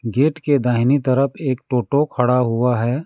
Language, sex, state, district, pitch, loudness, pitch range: Hindi, male, West Bengal, Alipurduar, 130 Hz, -18 LUFS, 125-145 Hz